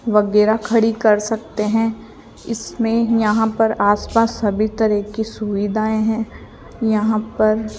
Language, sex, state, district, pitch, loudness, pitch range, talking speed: Hindi, female, Rajasthan, Jaipur, 220 Hz, -18 LUFS, 210-225 Hz, 130 wpm